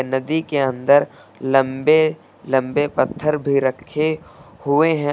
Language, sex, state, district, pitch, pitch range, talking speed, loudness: Hindi, male, Uttar Pradesh, Lucknow, 145 Hz, 135-155 Hz, 115 wpm, -19 LUFS